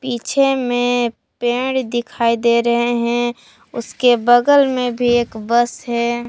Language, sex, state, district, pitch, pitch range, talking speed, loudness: Hindi, female, Jharkhand, Palamu, 240 Hz, 235-245 Hz, 135 wpm, -17 LUFS